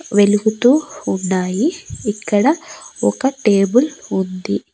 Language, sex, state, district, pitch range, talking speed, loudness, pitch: Telugu, female, Andhra Pradesh, Annamaya, 200-280 Hz, 75 wpm, -17 LUFS, 215 Hz